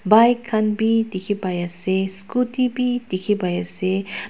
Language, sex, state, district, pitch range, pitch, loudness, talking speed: Nagamese, female, Nagaland, Dimapur, 185-230 Hz, 210 Hz, -21 LUFS, 165 wpm